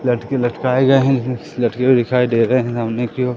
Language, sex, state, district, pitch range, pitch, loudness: Hindi, male, Madhya Pradesh, Katni, 120-130 Hz, 125 Hz, -17 LUFS